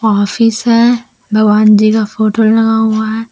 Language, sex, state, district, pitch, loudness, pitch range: Hindi, female, Jharkhand, Deoghar, 220 Hz, -11 LUFS, 215-225 Hz